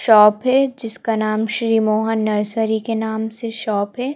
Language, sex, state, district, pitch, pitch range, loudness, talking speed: Hindi, female, Madhya Pradesh, Bhopal, 220 Hz, 215-230 Hz, -18 LUFS, 175 wpm